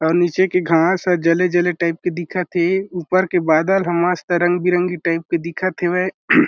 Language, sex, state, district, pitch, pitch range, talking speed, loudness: Chhattisgarhi, male, Chhattisgarh, Jashpur, 175 Hz, 170-180 Hz, 185 wpm, -18 LUFS